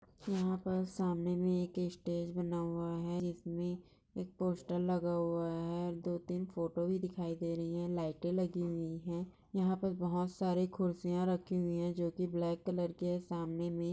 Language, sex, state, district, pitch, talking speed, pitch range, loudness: Hindi, female, Maharashtra, Nagpur, 175 Hz, 185 wpm, 170-180 Hz, -37 LUFS